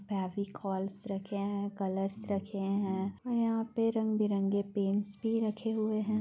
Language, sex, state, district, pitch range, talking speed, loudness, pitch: Hindi, female, Bihar, Gaya, 195-215 Hz, 155 wpm, -34 LUFS, 200 Hz